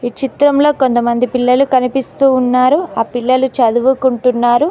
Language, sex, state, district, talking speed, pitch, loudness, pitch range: Telugu, female, Telangana, Mahabubabad, 100 wpm, 255 Hz, -13 LUFS, 245-270 Hz